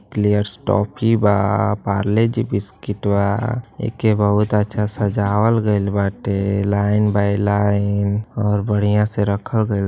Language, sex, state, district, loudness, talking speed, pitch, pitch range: Bhojpuri, male, Uttar Pradesh, Gorakhpur, -18 LUFS, 140 wpm, 105 Hz, 100-105 Hz